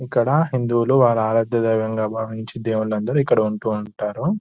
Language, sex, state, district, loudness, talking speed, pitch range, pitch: Telugu, male, Telangana, Nalgonda, -20 LUFS, 135 wpm, 110-125 Hz, 115 Hz